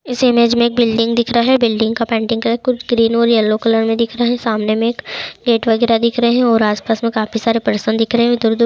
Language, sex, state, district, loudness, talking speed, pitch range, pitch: Hindi, female, Chhattisgarh, Jashpur, -15 LUFS, 250 wpm, 225-235 Hz, 230 Hz